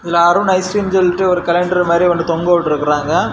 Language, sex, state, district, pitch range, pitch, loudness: Tamil, male, Tamil Nadu, Kanyakumari, 170-185 Hz, 175 Hz, -14 LUFS